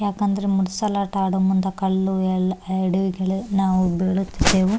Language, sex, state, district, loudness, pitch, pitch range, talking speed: Kannada, male, Karnataka, Bellary, -21 LUFS, 190 Hz, 185-195 Hz, 125 wpm